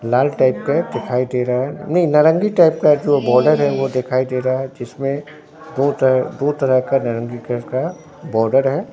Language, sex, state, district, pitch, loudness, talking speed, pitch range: Hindi, male, Bihar, Katihar, 135 Hz, -17 LUFS, 200 wpm, 125-150 Hz